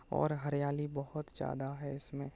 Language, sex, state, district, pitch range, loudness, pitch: Hindi, male, Uttarakhand, Tehri Garhwal, 140-150 Hz, -38 LUFS, 145 Hz